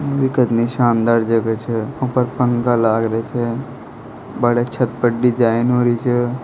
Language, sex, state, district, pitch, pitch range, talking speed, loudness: Hindi, male, Rajasthan, Nagaur, 120 Hz, 115-125 Hz, 160 wpm, -17 LUFS